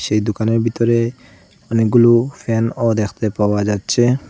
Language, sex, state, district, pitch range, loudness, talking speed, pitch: Bengali, male, Assam, Hailakandi, 105-120 Hz, -17 LUFS, 110 wpm, 115 Hz